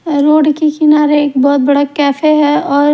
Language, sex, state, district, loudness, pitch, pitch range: Hindi, female, Haryana, Rohtak, -11 LUFS, 295 Hz, 285-300 Hz